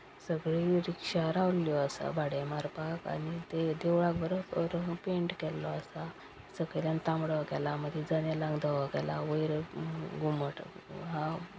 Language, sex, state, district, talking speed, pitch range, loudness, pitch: Konkani, male, Goa, North and South Goa, 120 wpm, 150-170 Hz, -34 LUFS, 160 Hz